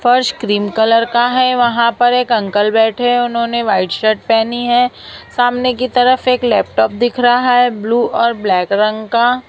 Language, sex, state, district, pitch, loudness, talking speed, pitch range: Hindi, female, Maharashtra, Mumbai Suburban, 235 Hz, -13 LUFS, 185 wpm, 220-245 Hz